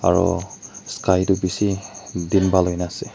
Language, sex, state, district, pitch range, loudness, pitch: Nagamese, male, Nagaland, Kohima, 90-95 Hz, -21 LUFS, 95 Hz